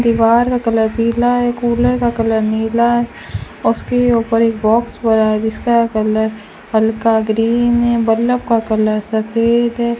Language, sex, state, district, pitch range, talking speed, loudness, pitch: Hindi, female, Rajasthan, Bikaner, 220-240 Hz, 155 wpm, -15 LUFS, 230 Hz